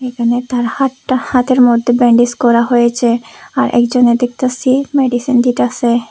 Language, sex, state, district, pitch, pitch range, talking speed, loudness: Bengali, female, Tripura, West Tripura, 245 Hz, 240-255 Hz, 130 wpm, -13 LUFS